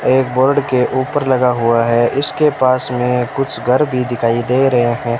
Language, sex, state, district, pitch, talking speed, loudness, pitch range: Hindi, male, Rajasthan, Bikaner, 125 Hz, 195 wpm, -15 LUFS, 120-130 Hz